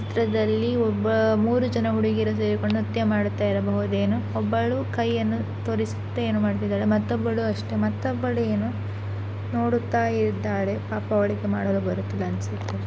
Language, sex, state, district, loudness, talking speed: Kannada, female, Karnataka, Shimoga, -24 LUFS, 120 wpm